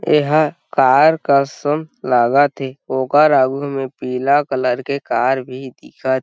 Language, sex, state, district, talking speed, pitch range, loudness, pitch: Chhattisgarhi, male, Chhattisgarh, Sarguja, 145 wpm, 130-145 Hz, -16 LUFS, 135 Hz